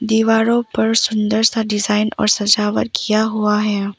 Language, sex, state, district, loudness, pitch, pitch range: Hindi, female, Arunachal Pradesh, Papum Pare, -16 LUFS, 215 Hz, 210-225 Hz